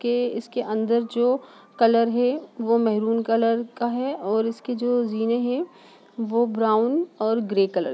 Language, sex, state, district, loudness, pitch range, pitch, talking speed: Hindi, female, Bihar, Sitamarhi, -23 LUFS, 225-245 Hz, 230 Hz, 165 wpm